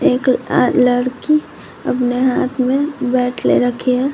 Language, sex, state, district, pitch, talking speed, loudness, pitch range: Hindi, female, Jharkhand, Garhwa, 255 Hz, 145 wpm, -16 LUFS, 250-265 Hz